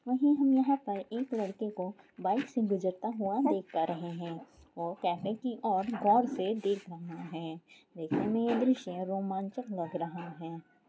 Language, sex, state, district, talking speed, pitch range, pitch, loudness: Hindi, female, Rajasthan, Nagaur, 180 wpm, 170-235 Hz, 195 Hz, -32 LUFS